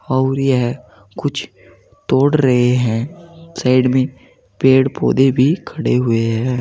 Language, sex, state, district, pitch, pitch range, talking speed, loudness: Hindi, male, Uttar Pradesh, Saharanpur, 130 Hz, 120-135 Hz, 125 wpm, -16 LUFS